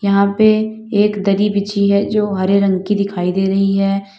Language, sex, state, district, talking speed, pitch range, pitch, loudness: Hindi, female, Uttar Pradesh, Lalitpur, 200 wpm, 195-205 Hz, 200 Hz, -15 LUFS